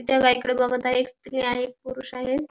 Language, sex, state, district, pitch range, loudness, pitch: Marathi, female, Maharashtra, Pune, 250-260 Hz, -24 LUFS, 255 Hz